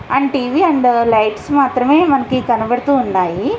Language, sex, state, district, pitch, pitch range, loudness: Telugu, female, Andhra Pradesh, Visakhapatnam, 255 Hz, 225-275 Hz, -14 LUFS